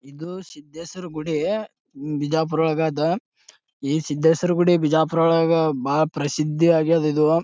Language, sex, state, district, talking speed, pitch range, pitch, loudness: Kannada, male, Karnataka, Bijapur, 115 wpm, 150-165 Hz, 160 Hz, -21 LUFS